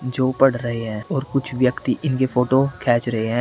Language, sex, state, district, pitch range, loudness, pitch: Hindi, male, Uttar Pradesh, Shamli, 120-135 Hz, -20 LUFS, 130 Hz